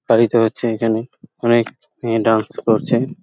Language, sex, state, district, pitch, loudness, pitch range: Bengali, male, West Bengal, Paschim Medinipur, 115 Hz, -18 LUFS, 115-120 Hz